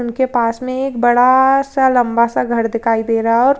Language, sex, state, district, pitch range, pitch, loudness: Hindi, female, Uttar Pradesh, Jyotiba Phule Nagar, 230-260 Hz, 240 Hz, -14 LUFS